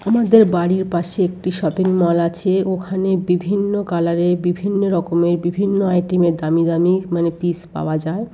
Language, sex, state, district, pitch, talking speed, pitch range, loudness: Bengali, female, West Bengal, North 24 Parganas, 180 Hz, 160 wpm, 170-190 Hz, -18 LUFS